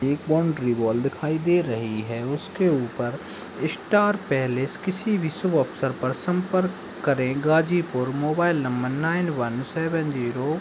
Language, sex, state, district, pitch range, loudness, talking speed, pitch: Hindi, male, Uttar Pradesh, Ghazipur, 125-175 Hz, -24 LUFS, 145 wpm, 145 Hz